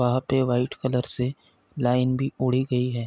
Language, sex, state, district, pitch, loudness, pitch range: Hindi, male, Uttar Pradesh, Deoria, 125 Hz, -25 LUFS, 125-130 Hz